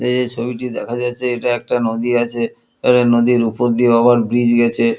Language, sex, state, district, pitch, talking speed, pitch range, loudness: Bengali, male, West Bengal, Kolkata, 120 Hz, 190 wpm, 120-125 Hz, -16 LUFS